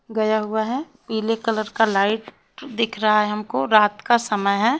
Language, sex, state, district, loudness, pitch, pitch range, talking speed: Hindi, female, Himachal Pradesh, Shimla, -21 LUFS, 220 Hz, 210-230 Hz, 185 wpm